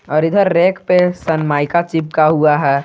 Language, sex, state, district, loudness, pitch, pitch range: Hindi, male, Jharkhand, Garhwa, -14 LUFS, 160 Hz, 150-180 Hz